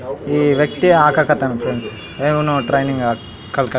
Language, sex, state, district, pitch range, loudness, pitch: Kannada, male, Karnataka, Raichur, 130-150 Hz, -16 LUFS, 140 Hz